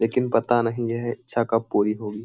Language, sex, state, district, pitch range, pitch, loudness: Hindi, male, Uttar Pradesh, Jyotiba Phule Nagar, 115-120 Hz, 115 Hz, -23 LUFS